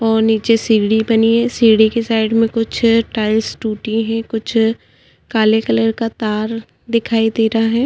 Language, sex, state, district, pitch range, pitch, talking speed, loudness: Hindi, female, Uttarakhand, Tehri Garhwal, 220-230 Hz, 225 Hz, 175 wpm, -15 LUFS